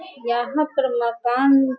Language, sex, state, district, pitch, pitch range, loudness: Hindi, female, Bihar, Sitamarhi, 260 Hz, 240-275 Hz, -21 LUFS